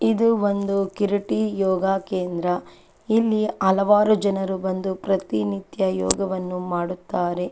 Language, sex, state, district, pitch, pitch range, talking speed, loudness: Kannada, female, Karnataka, Chamarajanagar, 195 Hz, 180-205 Hz, 105 wpm, -22 LUFS